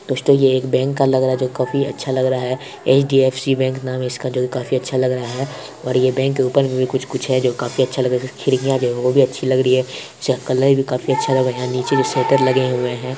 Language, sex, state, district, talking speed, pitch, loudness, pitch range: Hindi, male, Bihar, Purnia, 295 wpm, 130 Hz, -18 LUFS, 130-135 Hz